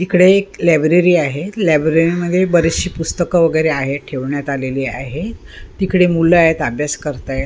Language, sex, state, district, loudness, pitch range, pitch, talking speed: Marathi, female, Maharashtra, Mumbai Suburban, -15 LUFS, 145-180 Hz, 165 Hz, 145 wpm